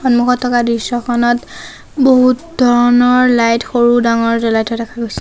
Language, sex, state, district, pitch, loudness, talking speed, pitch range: Assamese, female, Assam, Sonitpur, 240 Hz, -13 LUFS, 140 wpm, 230-250 Hz